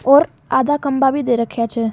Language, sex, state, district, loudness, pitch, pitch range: Rajasthani, female, Rajasthan, Nagaur, -17 LUFS, 265 Hz, 230-280 Hz